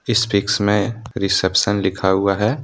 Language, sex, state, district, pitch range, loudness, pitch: Hindi, male, Jharkhand, Deoghar, 100-110 Hz, -18 LUFS, 100 Hz